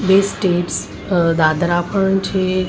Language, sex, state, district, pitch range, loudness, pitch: Gujarati, female, Maharashtra, Mumbai Suburban, 175-195 Hz, -17 LUFS, 185 Hz